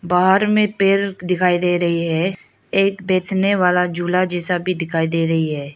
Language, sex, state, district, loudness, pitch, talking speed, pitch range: Hindi, female, Arunachal Pradesh, Lower Dibang Valley, -18 LUFS, 180 Hz, 175 wpm, 175-190 Hz